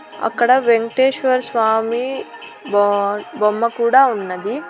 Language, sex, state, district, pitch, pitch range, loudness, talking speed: Telugu, female, Andhra Pradesh, Annamaya, 230 Hz, 205-255 Hz, -17 LUFS, 90 wpm